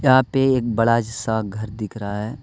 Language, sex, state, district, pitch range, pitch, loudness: Hindi, male, Jharkhand, Deoghar, 110-130 Hz, 115 Hz, -21 LUFS